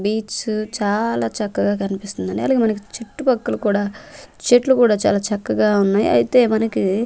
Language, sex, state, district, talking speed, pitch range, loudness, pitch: Telugu, female, Andhra Pradesh, Manyam, 135 wpm, 205-230 Hz, -19 LUFS, 215 Hz